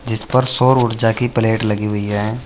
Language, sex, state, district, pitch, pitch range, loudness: Hindi, male, Uttar Pradesh, Saharanpur, 115 Hz, 105-125 Hz, -16 LUFS